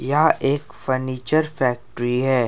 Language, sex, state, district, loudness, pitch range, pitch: Hindi, male, Jharkhand, Ranchi, -21 LUFS, 125-145 Hz, 130 Hz